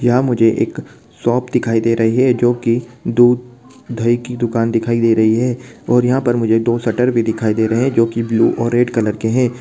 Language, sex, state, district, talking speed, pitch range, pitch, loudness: Hindi, male, Bihar, Begusarai, 230 wpm, 115-125 Hz, 120 Hz, -16 LUFS